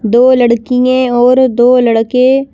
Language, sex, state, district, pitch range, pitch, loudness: Hindi, female, Madhya Pradesh, Bhopal, 240-255 Hz, 250 Hz, -9 LUFS